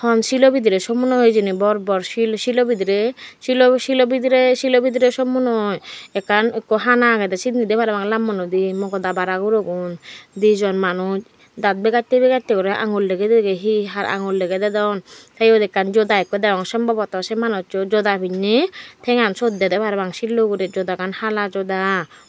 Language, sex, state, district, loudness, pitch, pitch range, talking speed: Chakma, female, Tripura, Dhalai, -18 LUFS, 210 Hz, 195-235 Hz, 160 wpm